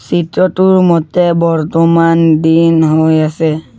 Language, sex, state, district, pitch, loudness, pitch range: Assamese, male, Assam, Sonitpur, 165 Hz, -10 LUFS, 160-170 Hz